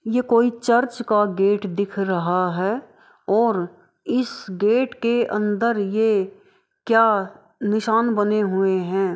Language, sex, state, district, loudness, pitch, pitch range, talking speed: Maithili, female, Bihar, Araria, -21 LUFS, 210 Hz, 195-230 Hz, 125 wpm